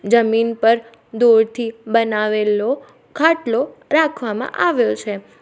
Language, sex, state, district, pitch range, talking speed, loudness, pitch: Gujarati, female, Gujarat, Valsad, 215-235 Hz, 90 wpm, -18 LUFS, 230 Hz